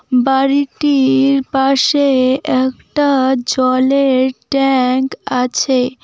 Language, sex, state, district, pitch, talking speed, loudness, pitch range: Bengali, female, West Bengal, Cooch Behar, 265 Hz, 60 wpm, -14 LUFS, 255-275 Hz